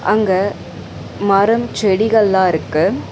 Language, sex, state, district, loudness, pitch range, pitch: Tamil, female, Tamil Nadu, Chennai, -15 LUFS, 190-215 Hz, 200 Hz